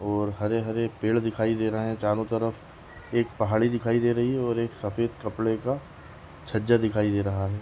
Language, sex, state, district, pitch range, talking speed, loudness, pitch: Kumaoni, male, Uttarakhand, Tehri Garhwal, 105-115 Hz, 195 wpm, -27 LUFS, 110 Hz